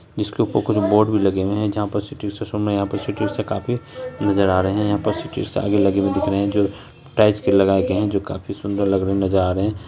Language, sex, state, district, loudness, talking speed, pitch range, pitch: Hindi, male, Bihar, Saharsa, -20 LUFS, 205 wpm, 100-105 Hz, 100 Hz